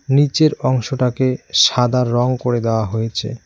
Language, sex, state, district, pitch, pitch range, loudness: Bengali, male, West Bengal, Cooch Behar, 125 Hz, 120-130 Hz, -17 LUFS